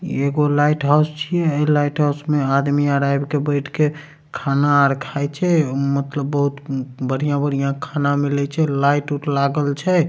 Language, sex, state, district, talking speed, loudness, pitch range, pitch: Maithili, male, Bihar, Supaul, 170 wpm, -19 LUFS, 140-150 Hz, 145 Hz